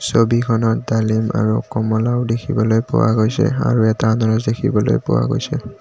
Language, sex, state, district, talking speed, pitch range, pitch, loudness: Assamese, male, Assam, Kamrup Metropolitan, 135 wpm, 110-120 Hz, 115 Hz, -17 LUFS